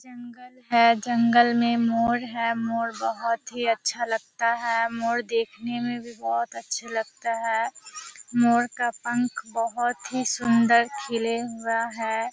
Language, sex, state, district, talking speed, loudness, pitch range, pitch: Hindi, female, Bihar, Kishanganj, 140 wpm, -25 LUFS, 230-240 Hz, 235 Hz